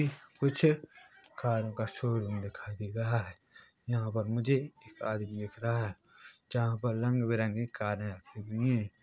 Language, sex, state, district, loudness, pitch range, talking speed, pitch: Hindi, male, Chhattisgarh, Korba, -33 LUFS, 105-120 Hz, 145 wpm, 115 Hz